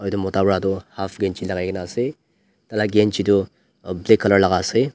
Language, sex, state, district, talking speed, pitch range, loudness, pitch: Nagamese, male, Nagaland, Dimapur, 205 wpm, 95-100 Hz, -20 LUFS, 95 Hz